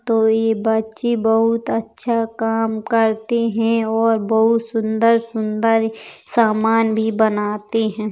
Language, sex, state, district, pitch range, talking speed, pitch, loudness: Hindi, female, Uttar Pradesh, Jalaun, 220-230 Hz, 110 wpm, 225 Hz, -18 LUFS